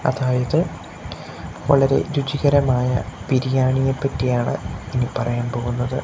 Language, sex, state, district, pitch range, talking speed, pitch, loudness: Malayalam, male, Kerala, Kasaragod, 120-135 Hz, 80 wpm, 130 Hz, -20 LUFS